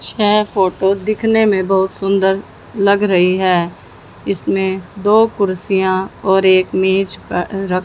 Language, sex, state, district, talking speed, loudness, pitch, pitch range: Hindi, female, Haryana, Jhajjar, 140 wpm, -15 LUFS, 195 Hz, 185-200 Hz